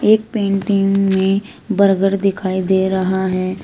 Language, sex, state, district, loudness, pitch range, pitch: Hindi, female, Uttar Pradesh, Shamli, -16 LUFS, 190-200 Hz, 195 Hz